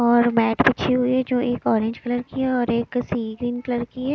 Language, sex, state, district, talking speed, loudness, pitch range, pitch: Hindi, female, Chhattisgarh, Raipur, 230 wpm, -22 LUFS, 235-250 Hz, 245 Hz